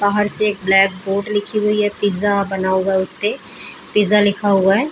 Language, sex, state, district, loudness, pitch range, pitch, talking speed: Hindi, female, Bihar, Saran, -17 LUFS, 195-210 Hz, 205 Hz, 220 wpm